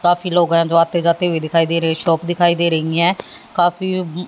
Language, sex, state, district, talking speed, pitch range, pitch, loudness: Hindi, female, Haryana, Jhajjar, 240 wpm, 165-175 Hz, 170 Hz, -15 LUFS